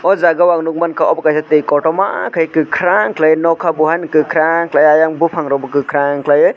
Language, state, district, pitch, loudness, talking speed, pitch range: Kokborok, Tripura, West Tripura, 160 Hz, -13 LUFS, 185 wpm, 150-170 Hz